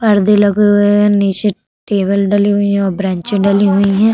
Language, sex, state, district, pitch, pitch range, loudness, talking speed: Hindi, female, Uttar Pradesh, Budaun, 200 Hz, 200-205 Hz, -12 LUFS, 205 wpm